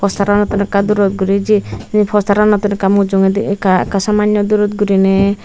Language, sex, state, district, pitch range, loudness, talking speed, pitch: Chakma, female, Tripura, Unakoti, 195-210 Hz, -13 LUFS, 145 wpm, 200 Hz